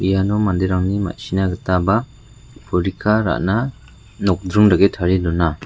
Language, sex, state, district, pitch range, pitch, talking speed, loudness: Garo, male, Meghalaya, West Garo Hills, 90-105 Hz, 95 Hz, 115 wpm, -18 LUFS